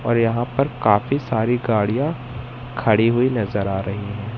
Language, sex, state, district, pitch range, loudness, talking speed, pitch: Hindi, male, Madhya Pradesh, Katni, 105-125 Hz, -20 LUFS, 165 wpm, 115 Hz